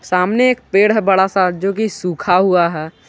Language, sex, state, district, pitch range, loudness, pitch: Hindi, male, Jharkhand, Garhwa, 180-210 Hz, -15 LUFS, 190 Hz